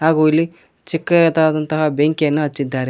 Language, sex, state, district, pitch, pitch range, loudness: Kannada, male, Karnataka, Koppal, 155 Hz, 150-165 Hz, -17 LUFS